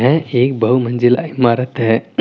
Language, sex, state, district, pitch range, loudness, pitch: Hindi, male, Telangana, Karimnagar, 120-130 Hz, -15 LUFS, 125 Hz